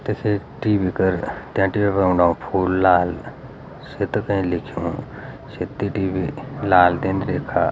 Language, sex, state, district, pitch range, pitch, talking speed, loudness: Garhwali, male, Uttarakhand, Uttarkashi, 90-105 Hz, 95 Hz, 140 wpm, -20 LUFS